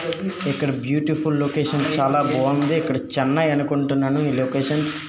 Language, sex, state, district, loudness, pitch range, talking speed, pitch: Telugu, male, Andhra Pradesh, Srikakulam, -21 LUFS, 140-155 Hz, 130 wpm, 145 Hz